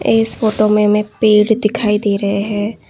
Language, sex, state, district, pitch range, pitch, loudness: Hindi, female, Assam, Kamrup Metropolitan, 210-220 Hz, 210 Hz, -14 LUFS